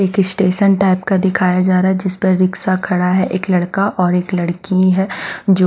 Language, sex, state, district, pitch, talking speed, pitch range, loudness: Hindi, female, Bihar, West Champaran, 185 Hz, 200 wpm, 185-190 Hz, -15 LUFS